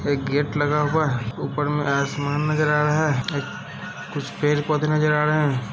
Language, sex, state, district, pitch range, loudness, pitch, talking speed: Hindi, male, Bihar, Saran, 145-155 Hz, -22 LUFS, 150 Hz, 200 wpm